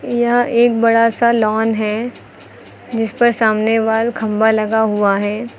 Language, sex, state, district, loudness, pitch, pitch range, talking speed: Hindi, female, Uttar Pradesh, Lucknow, -15 LUFS, 225 Hz, 220-235 Hz, 150 wpm